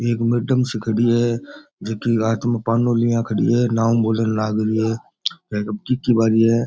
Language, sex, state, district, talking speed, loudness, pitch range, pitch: Rajasthani, male, Rajasthan, Churu, 205 wpm, -20 LUFS, 110-120 Hz, 115 Hz